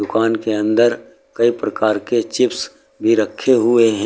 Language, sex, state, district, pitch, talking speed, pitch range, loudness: Hindi, male, Uttar Pradesh, Lucknow, 115 Hz, 160 wpm, 110-120 Hz, -17 LUFS